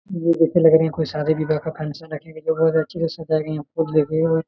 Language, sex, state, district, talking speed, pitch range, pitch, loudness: Hindi, male, Jharkhand, Jamtara, 310 wpm, 155-160 Hz, 160 Hz, -20 LUFS